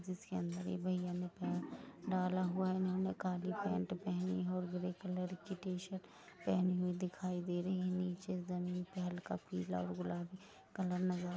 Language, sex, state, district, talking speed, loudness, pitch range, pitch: Hindi, female, Chhattisgarh, Rajnandgaon, 185 wpm, -40 LUFS, 180-185 Hz, 180 Hz